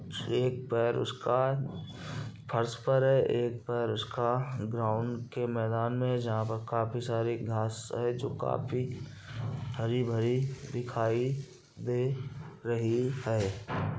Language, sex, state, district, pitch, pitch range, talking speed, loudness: Hindi, male, Bihar, Gopalganj, 120 Hz, 115-130 Hz, 115 wpm, -32 LUFS